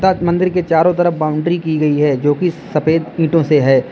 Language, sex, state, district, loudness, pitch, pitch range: Hindi, male, Uttar Pradesh, Lalitpur, -15 LUFS, 160 Hz, 150-175 Hz